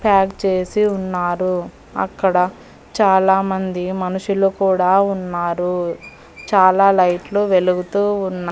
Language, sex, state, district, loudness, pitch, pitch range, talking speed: Telugu, female, Andhra Pradesh, Annamaya, -17 LUFS, 190 Hz, 180-195 Hz, 90 wpm